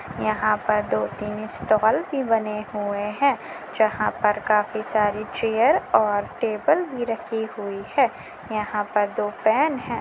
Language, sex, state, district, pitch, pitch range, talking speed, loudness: Hindi, female, Bihar, Jamui, 215 Hz, 210-225 Hz, 150 wpm, -23 LUFS